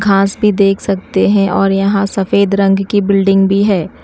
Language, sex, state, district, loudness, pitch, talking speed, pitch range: Hindi, female, Odisha, Nuapada, -12 LUFS, 195 Hz, 195 wpm, 195-200 Hz